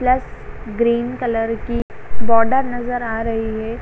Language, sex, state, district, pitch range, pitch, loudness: Hindi, female, Bihar, Sitamarhi, 225-245 Hz, 235 Hz, -20 LUFS